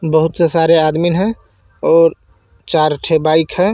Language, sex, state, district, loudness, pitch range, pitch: Hindi, male, Jharkhand, Garhwa, -14 LUFS, 160-185 Hz, 165 Hz